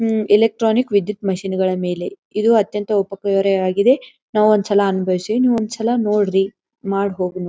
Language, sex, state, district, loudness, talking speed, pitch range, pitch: Kannada, female, Karnataka, Bijapur, -18 LUFS, 135 wpm, 195-225 Hz, 205 Hz